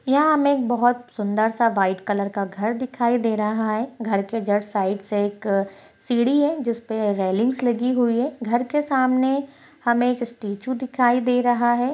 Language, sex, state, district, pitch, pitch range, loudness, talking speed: Hindi, female, Bihar, Jahanabad, 240 Hz, 205-255 Hz, -22 LUFS, 185 wpm